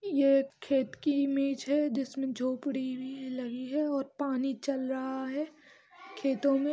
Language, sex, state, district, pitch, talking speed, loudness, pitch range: Hindi, female, Bihar, Gopalganj, 275 Hz, 170 wpm, -32 LUFS, 265-285 Hz